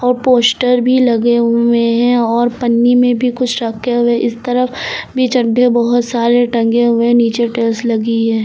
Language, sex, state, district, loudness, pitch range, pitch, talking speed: Hindi, female, Uttar Pradesh, Lucknow, -13 LUFS, 235-245 Hz, 240 Hz, 175 wpm